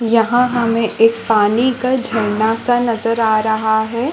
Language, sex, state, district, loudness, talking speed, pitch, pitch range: Hindi, female, Chhattisgarh, Balrampur, -15 LUFS, 160 wpm, 230 Hz, 220-240 Hz